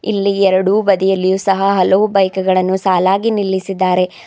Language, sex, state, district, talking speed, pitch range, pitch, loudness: Kannada, female, Karnataka, Bidar, 125 wpm, 185-195 Hz, 190 Hz, -14 LUFS